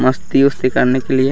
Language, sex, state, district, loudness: Hindi, male, Chhattisgarh, Raigarh, -15 LUFS